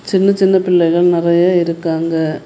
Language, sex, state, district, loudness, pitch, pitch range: Tamil, female, Tamil Nadu, Kanyakumari, -13 LUFS, 170 Hz, 165-185 Hz